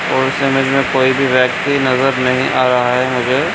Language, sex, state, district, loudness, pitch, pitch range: Hindi, male, Bihar, Jamui, -14 LUFS, 130 Hz, 125-135 Hz